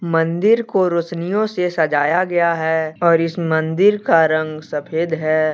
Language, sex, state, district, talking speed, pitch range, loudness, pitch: Hindi, male, Jharkhand, Deoghar, 150 wpm, 160-180 Hz, -17 LUFS, 165 Hz